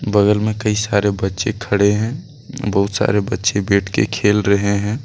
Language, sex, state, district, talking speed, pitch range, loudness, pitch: Hindi, male, Jharkhand, Deoghar, 180 wpm, 100-110 Hz, -17 LUFS, 105 Hz